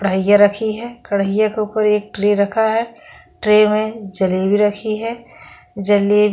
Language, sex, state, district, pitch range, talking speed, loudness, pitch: Hindi, female, Chhattisgarh, Korba, 205-220 Hz, 150 wpm, -17 LUFS, 210 Hz